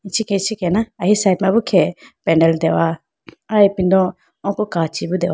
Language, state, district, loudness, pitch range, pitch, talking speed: Idu Mishmi, Arunachal Pradesh, Lower Dibang Valley, -17 LUFS, 175-205 Hz, 190 Hz, 180 wpm